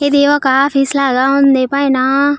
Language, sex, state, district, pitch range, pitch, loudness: Telugu, female, Andhra Pradesh, Sri Satya Sai, 265-285 Hz, 275 Hz, -12 LUFS